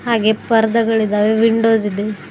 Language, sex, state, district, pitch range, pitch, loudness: Kannada, female, Karnataka, Bidar, 210-225 Hz, 220 Hz, -15 LUFS